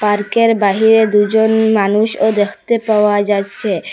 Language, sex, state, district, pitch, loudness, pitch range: Bengali, female, Assam, Hailakandi, 210 Hz, -13 LUFS, 205-220 Hz